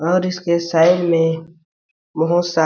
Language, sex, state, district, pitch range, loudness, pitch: Hindi, male, Chhattisgarh, Balrampur, 165-175 Hz, -17 LUFS, 170 Hz